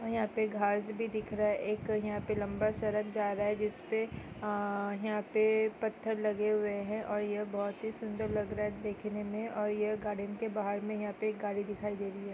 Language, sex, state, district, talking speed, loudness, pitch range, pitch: Hindi, female, Andhra Pradesh, Krishna, 220 wpm, -35 LUFS, 205-215 Hz, 210 Hz